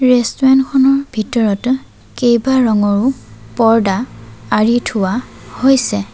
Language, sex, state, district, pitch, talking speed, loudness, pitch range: Assamese, female, Assam, Sonitpur, 240 Hz, 80 wpm, -14 LUFS, 205-260 Hz